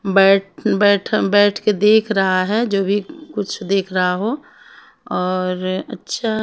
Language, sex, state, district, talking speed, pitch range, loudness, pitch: Hindi, female, Himachal Pradesh, Shimla, 150 wpm, 190-215 Hz, -17 LUFS, 200 Hz